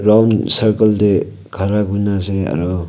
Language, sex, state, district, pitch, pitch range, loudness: Nagamese, male, Nagaland, Kohima, 100 Hz, 95-105 Hz, -15 LUFS